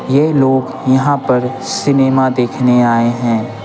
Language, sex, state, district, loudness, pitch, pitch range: Hindi, male, Bihar, Patna, -13 LUFS, 130 Hz, 120-130 Hz